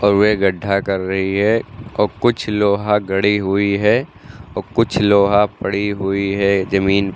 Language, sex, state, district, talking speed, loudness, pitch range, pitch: Hindi, male, Uttar Pradesh, Lucknow, 165 wpm, -17 LUFS, 100-105 Hz, 100 Hz